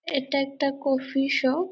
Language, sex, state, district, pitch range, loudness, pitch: Bengali, female, West Bengal, Purulia, 270-285 Hz, -25 LUFS, 275 Hz